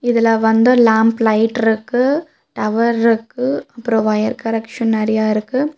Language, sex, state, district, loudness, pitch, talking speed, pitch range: Tamil, female, Tamil Nadu, Nilgiris, -16 LUFS, 225 Hz, 95 wpm, 220-240 Hz